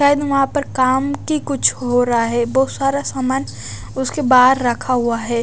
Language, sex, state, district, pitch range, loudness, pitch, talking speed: Hindi, female, Odisha, Nuapada, 240-275 Hz, -17 LUFS, 260 Hz, 175 wpm